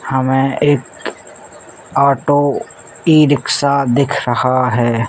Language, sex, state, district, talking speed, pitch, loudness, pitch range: Hindi, male, Uttar Pradesh, Ghazipur, 85 wpm, 135 Hz, -14 LUFS, 125-145 Hz